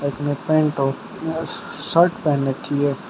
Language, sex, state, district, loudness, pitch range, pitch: Hindi, male, Uttar Pradesh, Shamli, -21 LUFS, 140-160 Hz, 145 Hz